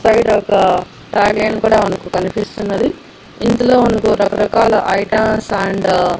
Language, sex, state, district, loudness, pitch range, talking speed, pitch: Telugu, female, Andhra Pradesh, Annamaya, -14 LUFS, 195-220 Hz, 125 wpm, 210 Hz